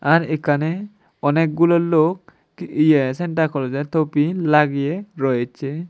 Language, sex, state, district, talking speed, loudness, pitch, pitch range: Bengali, male, Tripura, West Tripura, 110 wpm, -19 LUFS, 155 Hz, 145-170 Hz